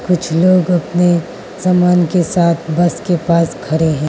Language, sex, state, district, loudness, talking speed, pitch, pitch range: Hindi, female, Mizoram, Aizawl, -14 LUFS, 160 wpm, 175 Hz, 165-180 Hz